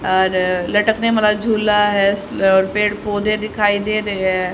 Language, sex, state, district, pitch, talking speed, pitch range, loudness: Hindi, female, Haryana, Rohtak, 205 Hz, 160 wpm, 190-215 Hz, -16 LUFS